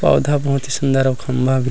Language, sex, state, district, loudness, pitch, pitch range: Chhattisgarhi, male, Chhattisgarh, Rajnandgaon, -18 LUFS, 135 Hz, 130-140 Hz